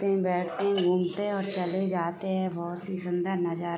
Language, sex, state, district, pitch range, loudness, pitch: Hindi, female, Jharkhand, Sahebganj, 175-190 Hz, -29 LUFS, 180 Hz